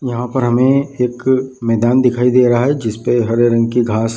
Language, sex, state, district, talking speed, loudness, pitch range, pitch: Hindi, male, Bihar, Madhepura, 215 wpm, -14 LUFS, 115-130 Hz, 120 Hz